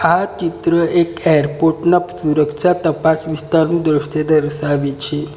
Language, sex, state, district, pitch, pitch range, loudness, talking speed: Gujarati, male, Gujarat, Valsad, 160 Hz, 150-170 Hz, -16 LUFS, 125 wpm